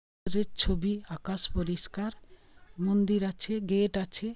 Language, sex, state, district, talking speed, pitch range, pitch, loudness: Bengali, female, West Bengal, Paschim Medinipur, 110 wpm, 190-205 Hz, 195 Hz, -31 LUFS